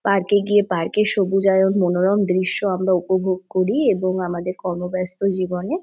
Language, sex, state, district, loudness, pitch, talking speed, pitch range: Bengali, female, West Bengal, Jhargram, -19 LUFS, 185 Hz, 175 wpm, 185-200 Hz